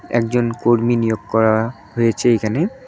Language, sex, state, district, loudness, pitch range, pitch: Bengali, male, West Bengal, Cooch Behar, -18 LUFS, 110-120 Hz, 115 Hz